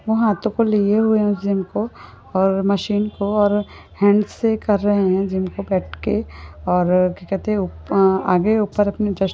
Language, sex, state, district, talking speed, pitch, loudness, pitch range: Hindi, female, Maharashtra, Nagpur, 195 wpm, 200 Hz, -19 LUFS, 190-210 Hz